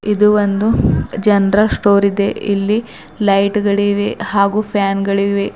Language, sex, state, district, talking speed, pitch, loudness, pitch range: Kannada, female, Karnataka, Bidar, 120 wpm, 200 Hz, -15 LUFS, 200-210 Hz